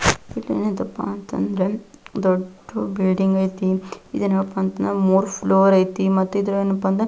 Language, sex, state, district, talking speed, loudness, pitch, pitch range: Kannada, female, Karnataka, Belgaum, 120 wpm, -21 LUFS, 190 Hz, 190-195 Hz